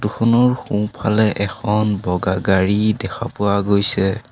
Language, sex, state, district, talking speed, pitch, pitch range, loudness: Assamese, male, Assam, Sonitpur, 125 wpm, 105 Hz, 100-110 Hz, -18 LUFS